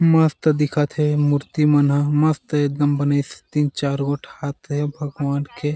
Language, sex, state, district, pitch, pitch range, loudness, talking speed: Chhattisgarhi, male, Chhattisgarh, Jashpur, 145 Hz, 145-150 Hz, -20 LUFS, 175 wpm